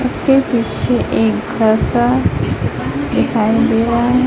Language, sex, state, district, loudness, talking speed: Hindi, female, Chhattisgarh, Raipur, -15 LUFS, 125 wpm